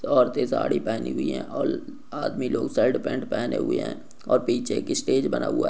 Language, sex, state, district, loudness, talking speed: Hindi, male, Uttar Pradesh, Jyotiba Phule Nagar, -25 LUFS, 210 wpm